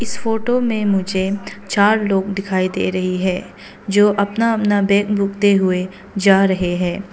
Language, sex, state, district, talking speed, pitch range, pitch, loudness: Hindi, female, Arunachal Pradesh, Papum Pare, 160 wpm, 190-205 Hz, 200 Hz, -17 LUFS